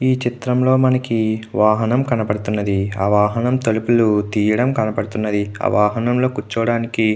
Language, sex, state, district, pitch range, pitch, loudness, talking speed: Telugu, male, Andhra Pradesh, Krishna, 105-120 Hz, 110 Hz, -18 LUFS, 115 wpm